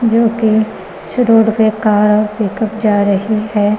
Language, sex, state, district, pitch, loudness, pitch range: Hindi, female, Uttar Pradesh, Gorakhpur, 215 Hz, -13 LUFS, 210-220 Hz